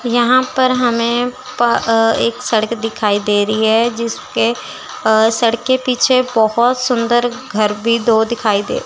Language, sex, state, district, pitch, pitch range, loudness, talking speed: Hindi, female, Chandigarh, Chandigarh, 235 Hz, 225-250 Hz, -15 LUFS, 155 wpm